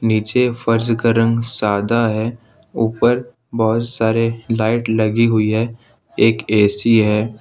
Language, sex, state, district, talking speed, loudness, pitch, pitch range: Hindi, male, Jharkhand, Ranchi, 130 wpm, -17 LUFS, 115 Hz, 110-115 Hz